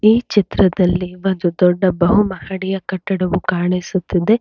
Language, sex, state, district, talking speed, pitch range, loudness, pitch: Kannada, female, Karnataka, Bangalore, 110 wpm, 180-195 Hz, -17 LUFS, 190 Hz